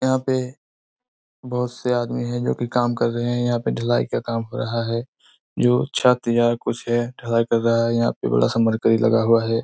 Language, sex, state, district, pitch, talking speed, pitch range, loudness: Hindi, male, Bihar, Araria, 120 Hz, 250 wpm, 115-120 Hz, -21 LUFS